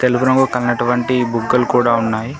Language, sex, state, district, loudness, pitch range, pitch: Telugu, male, Telangana, Komaram Bheem, -16 LUFS, 120-125 Hz, 125 Hz